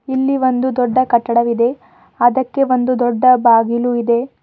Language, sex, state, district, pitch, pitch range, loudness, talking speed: Kannada, female, Karnataka, Bidar, 250 Hz, 235-260 Hz, -15 LUFS, 120 wpm